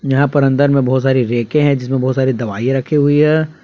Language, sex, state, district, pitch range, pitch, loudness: Hindi, male, Jharkhand, Palamu, 130-145 Hz, 135 Hz, -14 LUFS